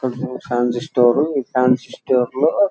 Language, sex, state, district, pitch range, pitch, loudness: Telugu, male, Andhra Pradesh, Chittoor, 120-130 Hz, 125 Hz, -18 LUFS